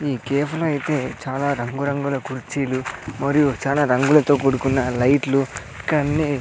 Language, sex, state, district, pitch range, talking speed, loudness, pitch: Telugu, male, Andhra Pradesh, Sri Satya Sai, 130-145 Hz, 140 wpm, -21 LUFS, 140 Hz